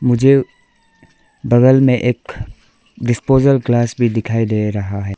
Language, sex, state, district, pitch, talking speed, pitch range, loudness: Hindi, female, Arunachal Pradesh, Lower Dibang Valley, 120 Hz, 125 wpm, 110-130 Hz, -15 LUFS